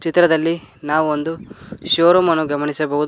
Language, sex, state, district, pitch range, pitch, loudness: Kannada, male, Karnataka, Koppal, 150-170 Hz, 160 Hz, -17 LUFS